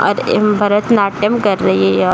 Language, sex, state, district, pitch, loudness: Hindi, female, Uttar Pradesh, Deoria, 205 Hz, -14 LUFS